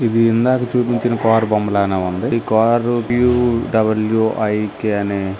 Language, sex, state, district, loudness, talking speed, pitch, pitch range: Telugu, male, Andhra Pradesh, Srikakulam, -17 LUFS, 145 wpm, 110 Hz, 105-120 Hz